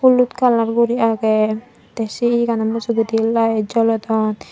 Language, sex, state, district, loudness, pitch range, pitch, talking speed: Chakma, female, Tripura, Dhalai, -17 LUFS, 220-235 Hz, 225 Hz, 135 wpm